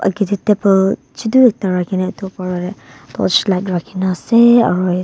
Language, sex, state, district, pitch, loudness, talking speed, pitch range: Nagamese, female, Nagaland, Kohima, 190 Hz, -15 LUFS, 165 wpm, 180-210 Hz